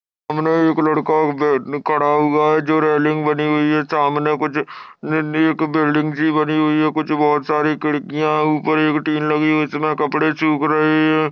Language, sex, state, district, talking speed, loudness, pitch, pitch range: Hindi, male, Maharashtra, Sindhudurg, 190 wpm, -17 LUFS, 155 Hz, 150-155 Hz